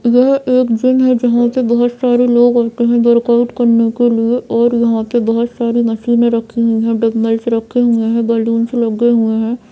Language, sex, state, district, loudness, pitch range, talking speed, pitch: Hindi, female, Bihar, Saran, -13 LUFS, 230-240 Hz, 200 wpm, 235 Hz